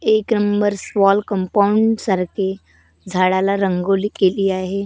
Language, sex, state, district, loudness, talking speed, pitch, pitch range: Marathi, female, Maharashtra, Gondia, -18 LUFS, 110 wpm, 195 Hz, 190-210 Hz